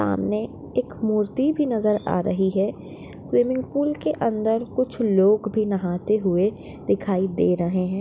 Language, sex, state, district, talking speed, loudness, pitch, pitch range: Hindi, female, Maharashtra, Nagpur, 155 wpm, -23 LUFS, 210 Hz, 190-230 Hz